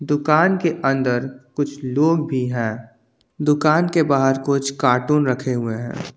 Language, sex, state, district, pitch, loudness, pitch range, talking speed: Hindi, male, Jharkhand, Ranchi, 135 Hz, -19 LUFS, 125-150 Hz, 145 wpm